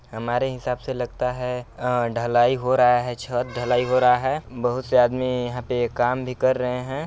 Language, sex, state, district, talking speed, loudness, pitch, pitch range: Hindi, male, Chhattisgarh, Balrampur, 210 wpm, -22 LUFS, 125 Hz, 120-125 Hz